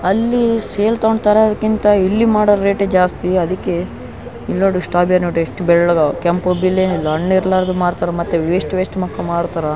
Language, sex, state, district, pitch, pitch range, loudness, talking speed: Kannada, male, Karnataka, Raichur, 185 Hz, 175-205 Hz, -15 LUFS, 145 wpm